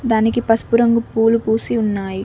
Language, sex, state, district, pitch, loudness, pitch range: Telugu, female, Telangana, Mahabubabad, 225 Hz, -17 LUFS, 220-230 Hz